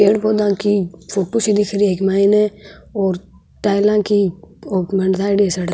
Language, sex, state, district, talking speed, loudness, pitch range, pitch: Marwari, female, Rajasthan, Nagaur, 145 wpm, -17 LUFS, 190-205 Hz, 200 Hz